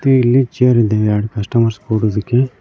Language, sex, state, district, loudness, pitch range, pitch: Kannada, male, Karnataka, Koppal, -15 LUFS, 105-125 Hz, 115 Hz